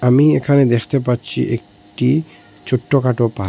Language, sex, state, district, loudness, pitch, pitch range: Bengali, male, Assam, Hailakandi, -17 LUFS, 125 Hz, 115-140 Hz